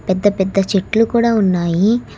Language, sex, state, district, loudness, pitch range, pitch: Telugu, female, Telangana, Hyderabad, -15 LUFS, 190-225 Hz, 195 Hz